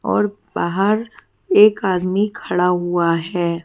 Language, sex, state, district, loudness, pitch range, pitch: Hindi, female, Haryana, Charkhi Dadri, -18 LUFS, 175-210 Hz, 185 Hz